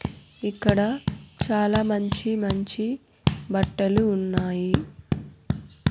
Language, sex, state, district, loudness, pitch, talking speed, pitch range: Telugu, female, Andhra Pradesh, Annamaya, -25 LUFS, 205 Hz, 60 wpm, 195-215 Hz